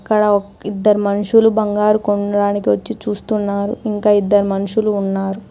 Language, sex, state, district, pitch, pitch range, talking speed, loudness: Telugu, female, Telangana, Hyderabad, 205 Hz, 200-215 Hz, 120 wpm, -16 LUFS